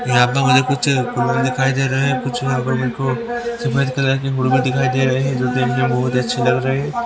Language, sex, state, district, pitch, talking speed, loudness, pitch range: Hindi, male, Haryana, Rohtak, 130 Hz, 220 wpm, -18 LUFS, 125-135 Hz